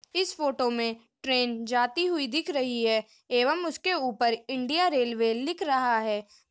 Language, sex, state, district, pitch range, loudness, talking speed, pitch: Hindi, female, Uttar Pradesh, Hamirpur, 230-305 Hz, -27 LUFS, 155 wpm, 250 Hz